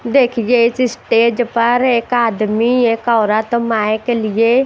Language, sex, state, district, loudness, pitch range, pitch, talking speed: Hindi, female, Chhattisgarh, Raipur, -14 LUFS, 225-245 Hz, 235 Hz, 130 wpm